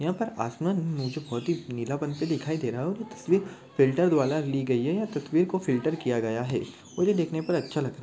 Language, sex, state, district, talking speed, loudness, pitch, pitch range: Hindi, male, Maharashtra, Aurangabad, 255 wpm, -28 LUFS, 150 Hz, 125-175 Hz